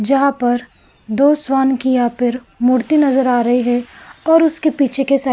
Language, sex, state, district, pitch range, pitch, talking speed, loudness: Hindi, female, Maharashtra, Gondia, 245-275 Hz, 260 Hz, 200 wpm, -15 LUFS